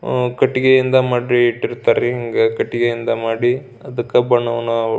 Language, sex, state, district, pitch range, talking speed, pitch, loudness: Kannada, male, Karnataka, Belgaum, 115-125 Hz, 110 wpm, 120 Hz, -17 LUFS